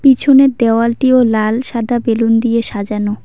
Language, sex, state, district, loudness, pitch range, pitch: Bengali, female, West Bengal, Cooch Behar, -13 LUFS, 225-255 Hz, 230 Hz